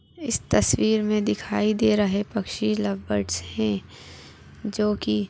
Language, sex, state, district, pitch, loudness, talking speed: Hindi, female, Chhattisgarh, Bilaspur, 105 Hz, -24 LUFS, 135 wpm